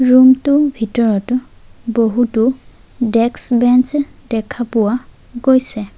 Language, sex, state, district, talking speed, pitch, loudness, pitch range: Assamese, female, Assam, Sonitpur, 90 wpm, 245 Hz, -15 LUFS, 230-255 Hz